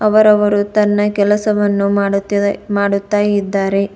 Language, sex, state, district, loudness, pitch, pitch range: Kannada, female, Karnataka, Bidar, -14 LUFS, 205 Hz, 200-210 Hz